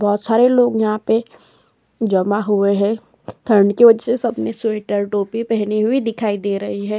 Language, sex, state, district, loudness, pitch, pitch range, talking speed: Hindi, female, Uttar Pradesh, Hamirpur, -17 LUFS, 215 Hz, 205-230 Hz, 180 wpm